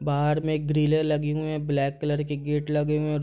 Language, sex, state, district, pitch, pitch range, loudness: Hindi, male, Bihar, East Champaran, 150 Hz, 145-150 Hz, -25 LUFS